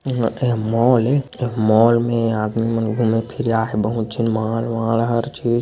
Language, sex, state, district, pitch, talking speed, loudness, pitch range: Chhattisgarhi, male, Chhattisgarh, Bilaspur, 115 Hz, 205 wpm, -19 LUFS, 115-120 Hz